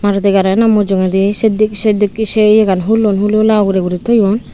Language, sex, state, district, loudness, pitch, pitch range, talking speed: Chakma, female, Tripura, Unakoti, -12 LUFS, 210 Hz, 195-215 Hz, 200 wpm